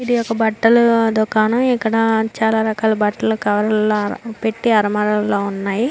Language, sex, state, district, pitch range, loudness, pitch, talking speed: Telugu, female, Andhra Pradesh, Anantapur, 210-225 Hz, -17 LUFS, 220 Hz, 130 wpm